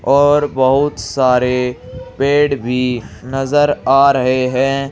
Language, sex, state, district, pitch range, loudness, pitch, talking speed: Hindi, male, Uttar Pradesh, Saharanpur, 125-140 Hz, -14 LUFS, 135 Hz, 110 wpm